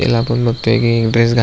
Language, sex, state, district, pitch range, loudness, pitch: Marathi, male, Maharashtra, Aurangabad, 115-120 Hz, -15 LUFS, 115 Hz